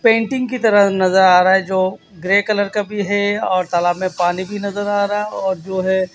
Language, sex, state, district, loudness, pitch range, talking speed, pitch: Hindi, male, Chhattisgarh, Raipur, -16 LUFS, 185-205 Hz, 245 wpm, 195 Hz